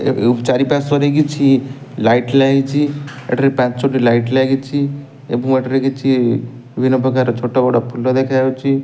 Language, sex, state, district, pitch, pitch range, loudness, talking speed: Odia, male, Odisha, Nuapada, 130 Hz, 125-135 Hz, -15 LUFS, 120 wpm